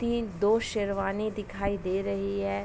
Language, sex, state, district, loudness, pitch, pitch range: Hindi, female, Uttar Pradesh, Ghazipur, -29 LUFS, 200 Hz, 180-215 Hz